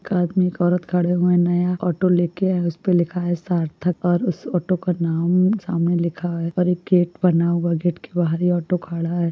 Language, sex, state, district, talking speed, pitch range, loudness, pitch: Hindi, female, Jharkhand, Jamtara, 240 wpm, 170-180 Hz, -20 LUFS, 175 Hz